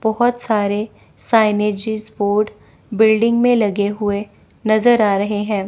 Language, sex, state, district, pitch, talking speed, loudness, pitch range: Hindi, female, Chandigarh, Chandigarh, 215 Hz, 125 wpm, -17 LUFS, 205-225 Hz